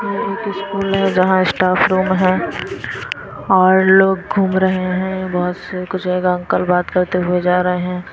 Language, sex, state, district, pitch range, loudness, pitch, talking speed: Hindi, female, Himachal Pradesh, Shimla, 180-190 Hz, -16 LUFS, 185 Hz, 175 wpm